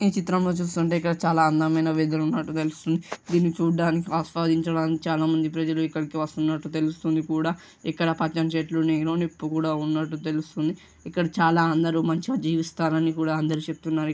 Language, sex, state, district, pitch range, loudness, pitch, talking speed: Telugu, female, Andhra Pradesh, Krishna, 155-165 Hz, -25 LUFS, 160 Hz, 140 wpm